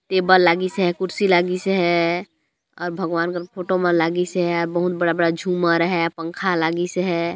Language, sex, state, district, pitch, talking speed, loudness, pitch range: Chhattisgarhi, male, Chhattisgarh, Jashpur, 175 Hz, 165 wpm, -20 LUFS, 170-180 Hz